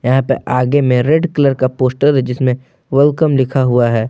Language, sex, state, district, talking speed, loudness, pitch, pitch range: Hindi, male, Jharkhand, Palamu, 205 wpm, -14 LUFS, 130 Hz, 125-140 Hz